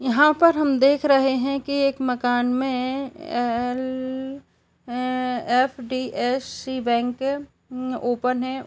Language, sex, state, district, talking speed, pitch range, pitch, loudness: Hindi, female, Uttar Pradesh, Varanasi, 95 wpm, 250-275 Hz, 260 Hz, -23 LUFS